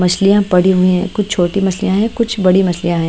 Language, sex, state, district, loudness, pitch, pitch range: Hindi, female, Himachal Pradesh, Shimla, -14 LUFS, 190 Hz, 180-200 Hz